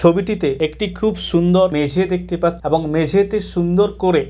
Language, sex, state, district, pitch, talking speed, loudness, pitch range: Bengali, male, West Bengal, Kolkata, 180 Hz, 155 wpm, -17 LUFS, 170-200 Hz